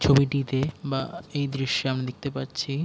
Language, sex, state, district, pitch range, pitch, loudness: Bengali, male, West Bengal, Jhargram, 135-145 Hz, 140 Hz, -27 LUFS